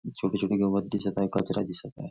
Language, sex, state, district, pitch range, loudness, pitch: Marathi, male, Maharashtra, Nagpur, 95-100 Hz, -28 LUFS, 100 Hz